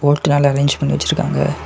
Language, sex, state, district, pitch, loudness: Tamil, male, Tamil Nadu, Kanyakumari, 140 Hz, -16 LUFS